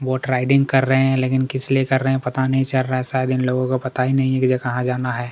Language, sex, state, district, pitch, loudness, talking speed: Hindi, male, Chhattisgarh, Kabirdham, 130 Hz, -19 LUFS, 315 wpm